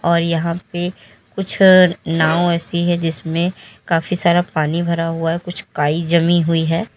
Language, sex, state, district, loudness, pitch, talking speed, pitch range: Hindi, female, Uttar Pradesh, Lalitpur, -17 LUFS, 170 Hz, 165 wpm, 165-175 Hz